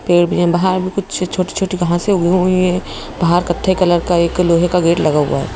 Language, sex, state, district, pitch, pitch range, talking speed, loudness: Hindi, female, Madhya Pradesh, Bhopal, 175 Hz, 175-185 Hz, 235 wpm, -15 LUFS